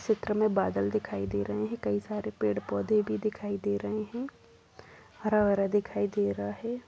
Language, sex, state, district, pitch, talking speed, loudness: Hindi, female, Goa, North and South Goa, 195 Hz, 200 wpm, -30 LUFS